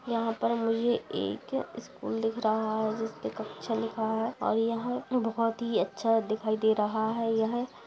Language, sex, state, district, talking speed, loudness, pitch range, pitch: Hindi, female, Bihar, Purnia, 170 wpm, -30 LUFS, 220-230 Hz, 225 Hz